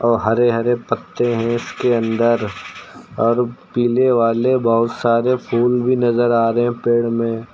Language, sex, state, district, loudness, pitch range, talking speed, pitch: Hindi, male, Uttar Pradesh, Lucknow, -17 LUFS, 115-120 Hz, 160 wpm, 120 Hz